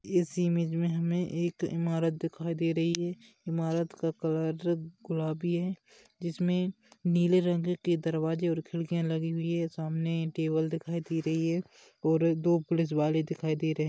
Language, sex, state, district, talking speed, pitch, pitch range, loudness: Hindi, male, Maharashtra, Aurangabad, 165 wpm, 165 Hz, 160-175 Hz, -31 LUFS